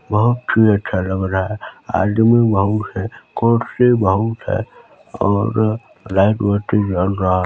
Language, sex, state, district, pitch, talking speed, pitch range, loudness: Hindi, male, Chhattisgarh, Balrampur, 105 Hz, 155 wpm, 95-110 Hz, -17 LUFS